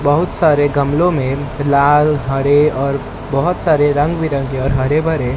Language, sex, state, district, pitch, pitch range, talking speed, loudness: Hindi, male, Maharashtra, Mumbai Suburban, 145 Hz, 135-150 Hz, 155 wpm, -15 LUFS